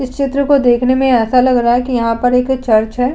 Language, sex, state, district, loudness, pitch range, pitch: Hindi, female, Uttar Pradesh, Budaun, -13 LUFS, 240-265 Hz, 250 Hz